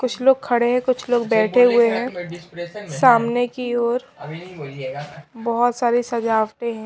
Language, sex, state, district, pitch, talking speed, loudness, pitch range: Hindi, female, Himachal Pradesh, Shimla, 235 Hz, 140 wpm, -19 LUFS, 180-245 Hz